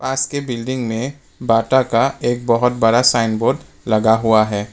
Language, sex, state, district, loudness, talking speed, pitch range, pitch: Hindi, male, Arunachal Pradesh, Papum Pare, -17 LUFS, 165 wpm, 115-130 Hz, 120 Hz